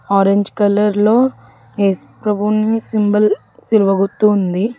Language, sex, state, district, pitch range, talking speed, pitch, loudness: Telugu, female, Telangana, Hyderabad, 200-215 Hz, 90 wpm, 210 Hz, -15 LUFS